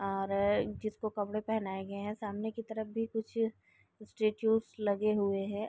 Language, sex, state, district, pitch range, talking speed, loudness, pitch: Hindi, female, Uttar Pradesh, Gorakhpur, 200-220 Hz, 150 wpm, -34 LUFS, 215 Hz